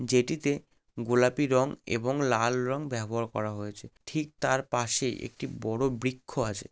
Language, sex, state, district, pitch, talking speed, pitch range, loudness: Bengali, male, West Bengal, Malda, 125 Hz, 150 wpm, 115-135 Hz, -29 LUFS